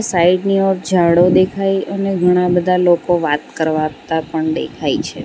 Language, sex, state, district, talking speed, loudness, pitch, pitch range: Gujarati, female, Gujarat, Valsad, 160 wpm, -15 LUFS, 180 Hz, 165-190 Hz